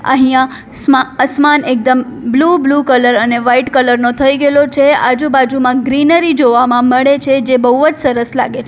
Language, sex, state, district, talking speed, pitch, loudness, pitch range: Gujarati, female, Gujarat, Valsad, 175 wpm, 260 Hz, -11 LUFS, 250-280 Hz